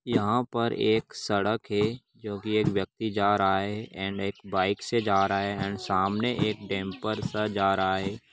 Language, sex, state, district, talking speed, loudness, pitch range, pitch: Magahi, male, Bihar, Gaya, 195 wpm, -28 LUFS, 100-110 Hz, 100 Hz